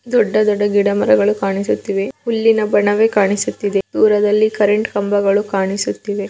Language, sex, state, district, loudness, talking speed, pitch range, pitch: Kannada, female, Karnataka, Belgaum, -16 LUFS, 105 wpm, 200-215 Hz, 205 Hz